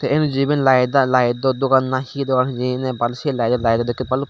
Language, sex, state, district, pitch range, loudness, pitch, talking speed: Chakma, male, Tripura, Dhalai, 125-135 Hz, -18 LUFS, 130 Hz, 225 wpm